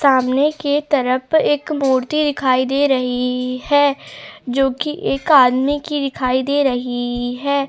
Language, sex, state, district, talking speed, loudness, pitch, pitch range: Hindi, female, Goa, North and South Goa, 140 wpm, -17 LUFS, 275 Hz, 255-290 Hz